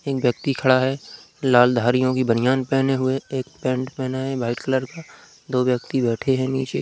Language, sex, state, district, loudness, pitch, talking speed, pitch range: Hindi, male, Uttar Pradesh, Budaun, -21 LUFS, 130 Hz, 195 wpm, 125-135 Hz